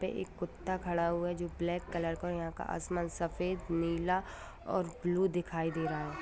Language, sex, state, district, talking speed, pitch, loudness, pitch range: Hindi, female, Bihar, Saran, 200 wpm, 175 Hz, -35 LUFS, 170-175 Hz